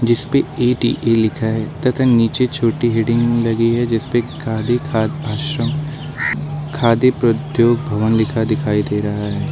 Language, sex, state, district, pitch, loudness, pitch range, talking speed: Hindi, male, Uttar Pradesh, Lucknow, 120 Hz, -17 LUFS, 115-140 Hz, 140 wpm